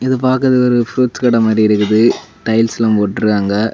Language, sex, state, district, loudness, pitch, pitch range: Tamil, male, Tamil Nadu, Kanyakumari, -13 LUFS, 115 Hz, 110-125 Hz